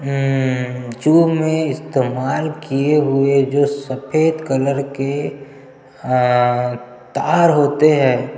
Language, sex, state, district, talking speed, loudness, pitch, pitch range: Hindi, male, Chhattisgarh, Jashpur, 105 wpm, -17 LUFS, 135 Hz, 130-150 Hz